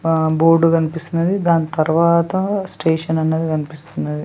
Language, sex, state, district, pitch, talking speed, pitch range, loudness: Telugu, female, Telangana, Nalgonda, 165 Hz, 115 wpm, 160-170 Hz, -17 LUFS